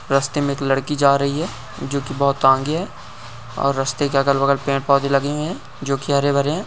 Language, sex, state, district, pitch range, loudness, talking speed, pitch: Hindi, male, Bihar, Saran, 135-140 Hz, -19 LUFS, 225 wpm, 140 Hz